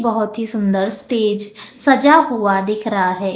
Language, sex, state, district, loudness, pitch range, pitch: Hindi, female, Maharashtra, Gondia, -15 LUFS, 195-235 Hz, 215 Hz